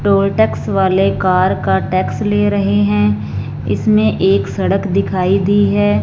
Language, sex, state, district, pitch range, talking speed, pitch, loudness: Hindi, female, Punjab, Fazilka, 100-140 Hz, 150 wpm, 105 Hz, -14 LUFS